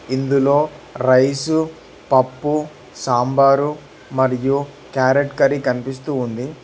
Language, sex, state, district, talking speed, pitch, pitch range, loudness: Telugu, male, Telangana, Hyderabad, 80 wpm, 135 Hz, 130-145 Hz, -18 LUFS